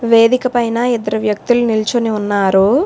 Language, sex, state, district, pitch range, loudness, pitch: Telugu, female, Telangana, Hyderabad, 210-240 Hz, -14 LUFS, 230 Hz